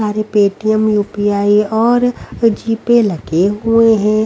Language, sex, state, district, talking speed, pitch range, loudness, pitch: Hindi, female, Haryana, Rohtak, 115 wpm, 205-225 Hz, -14 LUFS, 215 Hz